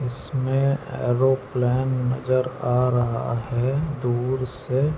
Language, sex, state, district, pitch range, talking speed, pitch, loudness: Hindi, male, Chhattisgarh, Bilaspur, 125-135 Hz, 95 wpm, 130 Hz, -23 LUFS